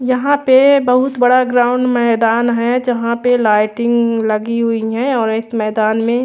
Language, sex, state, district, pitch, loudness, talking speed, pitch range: Hindi, female, Odisha, Khordha, 235 Hz, -14 LUFS, 165 wpm, 225-250 Hz